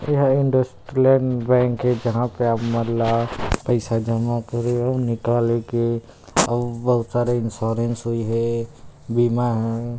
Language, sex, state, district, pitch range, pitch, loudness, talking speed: Chhattisgarhi, male, Chhattisgarh, Rajnandgaon, 115-125 Hz, 120 Hz, -21 LUFS, 145 wpm